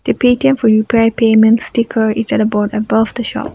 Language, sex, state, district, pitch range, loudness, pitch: English, female, Nagaland, Kohima, 220-235 Hz, -13 LUFS, 225 Hz